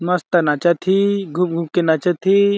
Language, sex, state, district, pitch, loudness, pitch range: Awadhi, male, Chhattisgarh, Balrampur, 180 Hz, -17 LUFS, 170-190 Hz